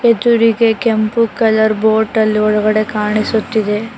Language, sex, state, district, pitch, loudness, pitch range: Kannada, female, Karnataka, Bangalore, 220 Hz, -13 LUFS, 215-230 Hz